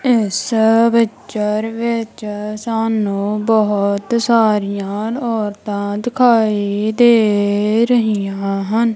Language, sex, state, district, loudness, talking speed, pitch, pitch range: Punjabi, female, Punjab, Kapurthala, -16 LUFS, 75 wpm, 215 Hz, 205-230 Hz